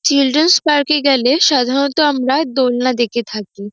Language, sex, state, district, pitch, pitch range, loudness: Bengali, female, West Bengal, North 24 Parganas, 275 Hz, 250-290 Hz, -14 LUFS